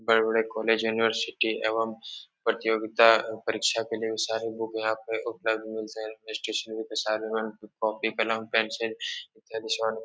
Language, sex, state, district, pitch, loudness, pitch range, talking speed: Hindi, male, Uttar Pradesh, Etah, 110 Hz, -28 LUFS, 110-115 Hz, 145 wpm